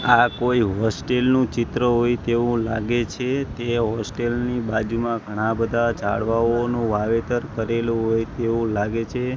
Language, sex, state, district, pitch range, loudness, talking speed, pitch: Gujarati, male, Gujarat, Gandhinagar, 115-120 Hz, -22 LUFS, 140 wpm, 115 Hz